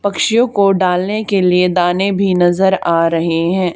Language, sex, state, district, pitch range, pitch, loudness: Hindi, female, Haryana, Charkhi Dadri, 175-195 Hz, 185 Hz, -14 LUFS